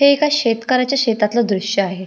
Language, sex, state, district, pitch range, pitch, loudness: Marathi, female, Maharashtra, Pune, 210-275 Hz, 230 Hz, -17 LUFS